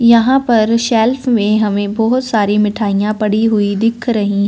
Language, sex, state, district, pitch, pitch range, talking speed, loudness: Hindi, female, Punjab, Fazilka, 220 Hz, 210-230 Hz, 160 wpm, -14 LUFS